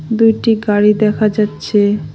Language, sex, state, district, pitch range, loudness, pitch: Bengali, female, West Bengal, Cooch Behar, 205-215 Hz, -13 LUFS, 210 Hz